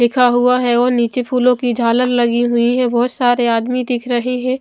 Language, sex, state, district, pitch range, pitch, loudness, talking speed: Hindi, female, Maharashtra, Mumbai Suburban, 240-250 Hz, 245 Hz, -15 LUFS, 220 wpm